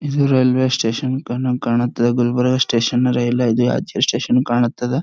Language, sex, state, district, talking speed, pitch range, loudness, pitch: Kannada, male, Karnataka, Gulbarga, 130 wpm, 120-130 Hz, -17 LUFS, 125 Hz